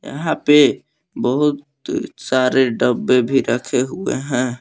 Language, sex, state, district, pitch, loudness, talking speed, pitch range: Hindi, male, Jharkhand, Palamu, 130 Hz, -18 LUFS, 115 wpm, 125-140 Hz